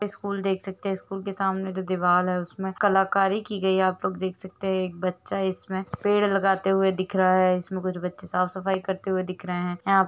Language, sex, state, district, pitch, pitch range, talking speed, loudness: Hindi, female, Chhattisgarh, Rajnandgaon, 190 Hz, 185-195 Hz, 230 wpm, -25 LUFS